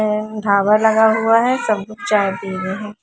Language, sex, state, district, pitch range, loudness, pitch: Hindi, female, Haryana, Charkhi Dadri, 200-220 Hz, -17 LUFS, 210 Hz